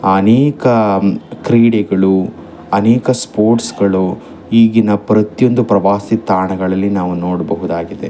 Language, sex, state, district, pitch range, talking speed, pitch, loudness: Kannada, male, Karnataka, Chamarajanagar, 95-115 Hz, 80 wpm, 100 Hz, -13 LUFS